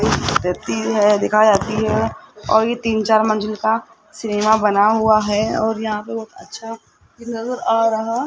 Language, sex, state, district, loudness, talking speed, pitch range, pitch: Hindi, male, Rajasthan, Jaipur, -18 LUFS, 175 wpm, 215-225 Hz, 220 Hz